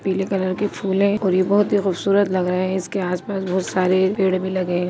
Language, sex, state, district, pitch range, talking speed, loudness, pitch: Hindi, female, Uttarakhand, Uttarkashi, 185-195 Hz, 255 wpm, -20 LUFS, 190 Hz